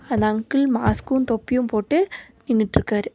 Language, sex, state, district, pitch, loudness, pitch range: Tamil, female, Tamil Nadu, Nilgiris, 235 Hz, -21 LUFS, 215-265 Hz